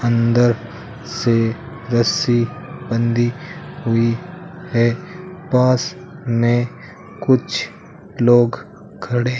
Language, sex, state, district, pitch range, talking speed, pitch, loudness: Hindi, male, Rajasthan, Bikaner, 120-165 Hz, 70 wpm, 120 Hz, -18 LUFS